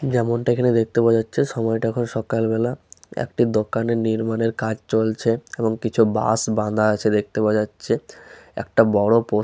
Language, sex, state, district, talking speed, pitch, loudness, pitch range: Bengali, male, West Bengal, Malda, 185 wpm, 115 Hz, -21 LUFS, 110-115 Hz